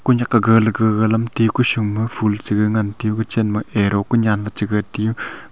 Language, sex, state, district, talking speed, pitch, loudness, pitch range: Wancho, male, Arunachal Pradesh, Longding, 260 wpm, 110 Hz, -17 LUFS, 105-115 Hz